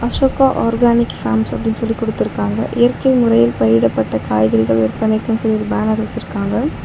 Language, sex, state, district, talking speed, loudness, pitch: Tamil, female, Tamil Nadu, Chennai, 130 wpm, -16 LUFS, 220 Hz